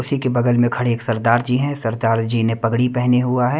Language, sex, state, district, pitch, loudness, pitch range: Hindi, male, Punjab, Kapurthala, 120 Hz, -18 LUFS, 115-125 Hz